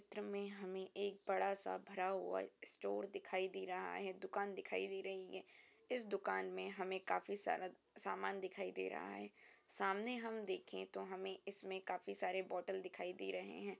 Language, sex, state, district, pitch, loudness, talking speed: Hindi, female, Uttar Pradesh, Jyotiba Phule Nagar, 190 Hz, -44 LUFS, 180 wpm